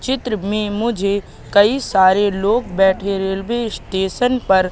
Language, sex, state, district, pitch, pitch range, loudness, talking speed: Hindi, female, Madhya Pradesh, Katni, 205 Hz, 195-235 Hz, -17 LUFS, 125 wpm